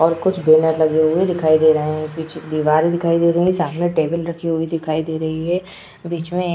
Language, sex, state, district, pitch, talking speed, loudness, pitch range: Hindi, female, Uttar Pradesh, Etah, 165 Hz, 240 wpm, -18 LUFS, 155-170 Hz